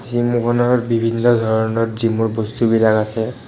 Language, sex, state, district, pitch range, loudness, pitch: Assamese, male, Assam, Kamrup Metropolitan, 110-120 Hz, -17 LUFS, 115 Hz